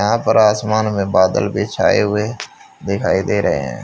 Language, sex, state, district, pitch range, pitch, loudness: Hindi, male, Haryana, Charkhi Dadri, 105-110 Hz, 105 Hz, -16 LUFS